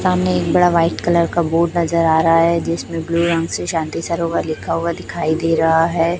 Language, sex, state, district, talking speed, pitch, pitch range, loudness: Hindi, male, Chhattisgarh, Raipur, 220 wpm, 170 Hz, 165-170 Hz, -17 LUFS